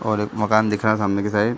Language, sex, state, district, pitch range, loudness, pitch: Hindi, male, Bihar, Sitamarhi, 105-110 Hz, -20 LUFS, 105 Hz